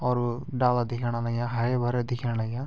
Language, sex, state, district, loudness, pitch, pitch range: Garhwali, male, Uttarakhand, Tehri Garhwal, -27 LUFS, 120 Hz, 120-125 Hz